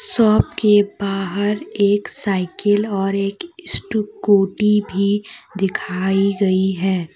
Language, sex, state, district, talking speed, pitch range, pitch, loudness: Hindi, female, Jharkhand, Deoghar, 100 wpm, 195-210 Hz, 200 Hz, -18 LUFS